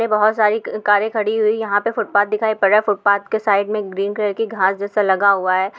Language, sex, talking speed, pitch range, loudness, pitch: Hindi, female, 260 wpm, 200-215 Hz, -17 LUFS, 205 Hz